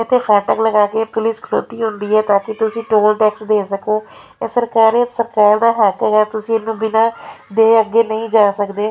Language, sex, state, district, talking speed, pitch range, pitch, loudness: Punjabi, female, Punjab, Fazilka, 210 wpm, 210-225 Hz, 220 Hz, -15 LUFS